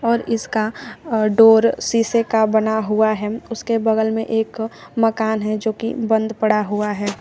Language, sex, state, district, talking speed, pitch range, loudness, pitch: Hindi, female, Uttar Pradesh, Shamli, 175 wpm, 215-225 Hz, -18 LUFS, 220 Hz